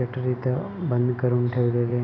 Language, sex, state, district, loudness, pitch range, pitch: Marathi, male, Maharashtra, Sindhudurg, -24 LUFS, 120-125 Hz, 125 Hz